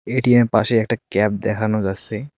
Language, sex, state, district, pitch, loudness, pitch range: Bengali, male, West Bengal, Cooch Behar, 110 Hz, -18 LUFS, 105-120 Hz